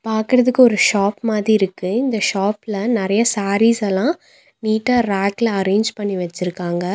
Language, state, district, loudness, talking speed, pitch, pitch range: Tamil, Tamil Nadu, Nilgiris, -18 LUFS, 130 wpm, 210 Hz, 195-230 Hz